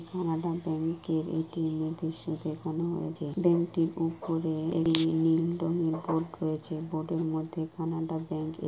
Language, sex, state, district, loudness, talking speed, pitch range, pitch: Bengali, female, West Bengal, Purulia, -31 LUFS, 140 wpm, 160-165 Hz, 165 Hz